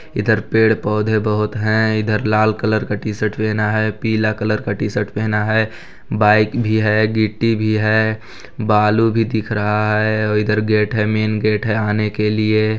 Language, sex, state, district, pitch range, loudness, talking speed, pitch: Hindi, male, Chhattisgarh, Balrampur, 105-110 Hz, -17 LUFS, 185 wpm, 110 Hz